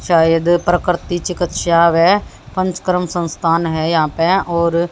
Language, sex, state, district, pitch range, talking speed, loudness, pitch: Hindi, female, Haryana, Jhajjar, 165-175 Hz, 120 wpm, -16 LUFS, 170 Hz